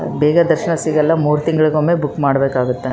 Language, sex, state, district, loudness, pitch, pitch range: Kannada, female, Karnataka, Raichur, -15 LUFS, 150 Hz, 140-160 Hz